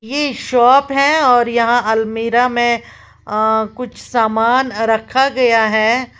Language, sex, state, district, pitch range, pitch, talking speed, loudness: Hindi, female, Uttar Pradesh, Lalitpur, 225-255 Hz, 240 Hz, 125 wpm, -14 LUFS